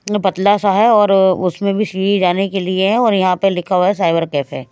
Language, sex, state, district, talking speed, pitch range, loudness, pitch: Hindi, female, Haryana, Rohtak, 240 wpm, 180-200 Hz, -15 LUFS, 195 Hz